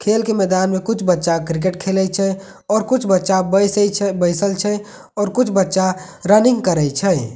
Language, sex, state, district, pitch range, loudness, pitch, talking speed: Maithili, male, Bihar, Katihar, 185-205 Hz, -17 LUFS, 195 Hz, 180 wpm